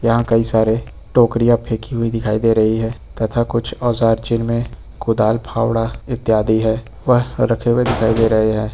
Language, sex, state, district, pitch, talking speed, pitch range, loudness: Hindi, male, Uttar Pradesh, Lucknow, 115 Hz, 170 wpm, 110-120 Hz, -17 LUFS